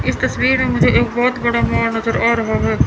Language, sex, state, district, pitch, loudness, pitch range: Hindi, female, Chandigarh, Chandigarh, 230 Hz, -16 LUFS, 155-235 Hz